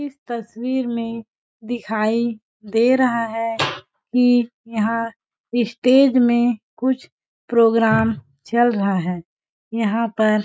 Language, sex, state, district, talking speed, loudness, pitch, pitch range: Hindi, female, Chhattisgarh, Balrampur, 110 wpm, -20 LUFS, 230 Hz, 220-240 Hz